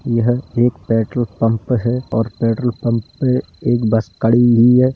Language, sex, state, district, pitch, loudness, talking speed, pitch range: Hindi, male, Uttar Pradesh, Hamirpur, 120 Hz, -16 LUFS, 170 wpm, 115-125 Hz